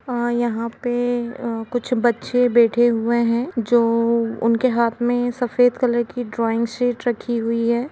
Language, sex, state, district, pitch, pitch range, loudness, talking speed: Hindi, female, Uttar Pradesh, Etah, 240 Hz, 230-245 Hz, -20 LUFS, 160 wpm